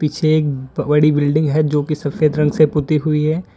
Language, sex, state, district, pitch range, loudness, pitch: Hindi, male, Uttar Pradesh, Lalitpur, 150-155 Hz, -16 LUFS, 150 Hz